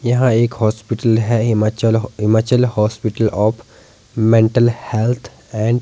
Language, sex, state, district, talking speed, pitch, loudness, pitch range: Hindi, male, Himachal Pradesh, Shimla, 125 wpm, 115 Hz, -16 LUFS, 110-120 Hz